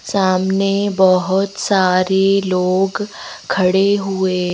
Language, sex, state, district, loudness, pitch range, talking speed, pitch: Hindi, female, Madhya Pradesh, Bhopal, -16 LUFS, 185-195 Hz, 80 wpm, 190 Hz